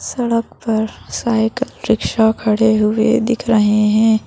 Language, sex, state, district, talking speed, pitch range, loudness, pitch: Hindi, female, Madhya Pradesh, Bhopal, 125 wpm, 220-230 Hz, -16 LUFS, 220 Hz